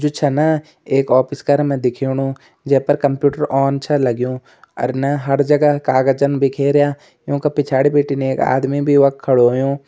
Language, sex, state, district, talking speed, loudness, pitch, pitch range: Garhwali, male, Uttarakhand, Uttarkashi, 170 wpm, -16 LUFS, 140 Hz, 135-145 Hz